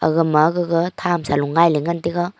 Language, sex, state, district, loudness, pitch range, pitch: Wancho, female, Arunachal Pradesh, Longding, -18 LUFS, 155-175 Hz, 170 Hz